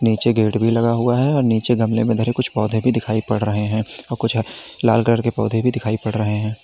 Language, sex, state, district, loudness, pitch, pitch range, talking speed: Hindi, male, Uttar Pradesh, Lalitpur, -19 LUFS, 115 Hz, 110-120 Hz, 270 wpm